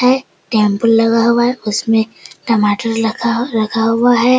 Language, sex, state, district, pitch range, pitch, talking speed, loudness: Hindi, female, Bihar, Sitamarhi, 220-240 Hz, 230 Hz, 150 wpm, -14 LUFS